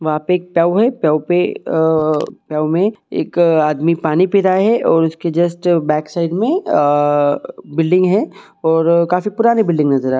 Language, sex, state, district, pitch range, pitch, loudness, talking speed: Hindi, male, Jharkhand, Sahebganj, 155-185 Hz, 170 Hz, -15 LUFS, 170 wpm